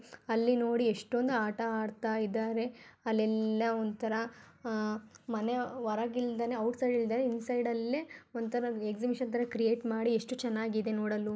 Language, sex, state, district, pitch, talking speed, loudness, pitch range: Kannada, female, Karnataka, Gulbarga, 230 Hz, 120 wpm, -33 LUFS, 220-240 Hz